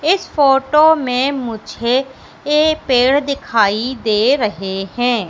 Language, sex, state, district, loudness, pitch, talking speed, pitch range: Hindi, female, Madhya Pradesh, Katni, -15 LUFS, 260 Hz, 115 wpm, 225-290 Hz